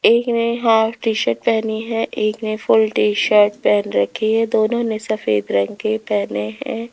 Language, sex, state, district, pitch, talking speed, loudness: Hindi, female, Rajasthan, Jaipur, 215 Hz, 190 wpm, -18 LUFS